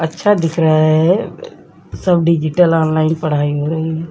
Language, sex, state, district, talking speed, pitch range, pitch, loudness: Hindi, female, Bihar, Vaishali, 145 wpm, 155-170 Hz, 160 Hz, -14 LUFS